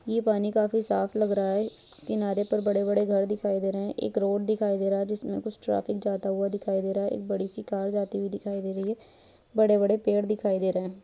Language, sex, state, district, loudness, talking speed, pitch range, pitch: Hindi, male, Bihar, Muzaffarpur, -28 LUFS, 245 wpm, 195-210 Hz, 200 Hz